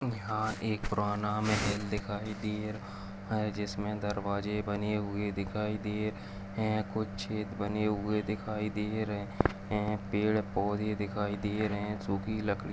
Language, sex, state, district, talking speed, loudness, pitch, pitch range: Kumaoni, male, Uttarakhand, Uttarkashi, 155 wpm, -34 LUFS, 105 Hz, 100-105 Hz